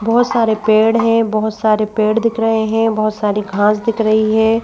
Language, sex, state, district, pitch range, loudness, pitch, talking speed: Hindi, female, Madhya Pradesh, Bhopal, 215-225 Hz, -15 LUFS, 220 Hz, 205 wpm